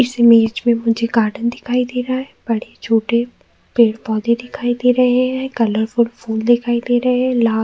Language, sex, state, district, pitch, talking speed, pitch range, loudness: Hindi, female, Uttar Pradesh, Jyotiba Phule Nagar, 235 Hz, 195 wpm, 230-250 Hz, -17 LUFS